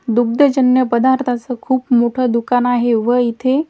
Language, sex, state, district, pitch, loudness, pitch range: Marathi, female, Maharashtra, Washim, 245 Hz, -15 LUFS, 240-260 Hz